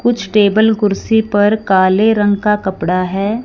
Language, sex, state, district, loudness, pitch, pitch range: Hindi, female, Punjab, Fazilka, -13 LUFS, 205 Hz, 195-220 Hz